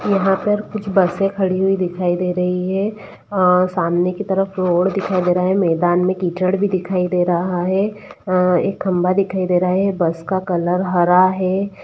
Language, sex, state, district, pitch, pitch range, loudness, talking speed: Hindi, female, Jharkhand, Sahebganj, 185 Hz, 180-195 Hz, -18 LUFS, 200 wpm